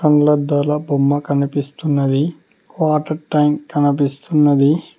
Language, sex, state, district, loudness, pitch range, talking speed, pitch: Telugu, male, Telangana, Mahabubabad, -17 LUFS, 140-150 Hz, 70 wpm, 145 Hz